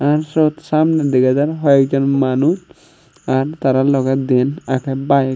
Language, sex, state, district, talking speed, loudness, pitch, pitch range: Chakma, male, Tripura, Unakoti, 170 wpm, -16 LUFS, 140 Hz, 130-155 Hz